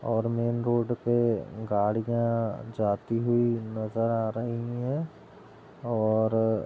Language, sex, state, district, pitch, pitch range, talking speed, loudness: Hindi, male, Uttar Pradesh, Gorakhpur, 115 Hz, 110-120 Hz, 110 wpm, -28 LUFS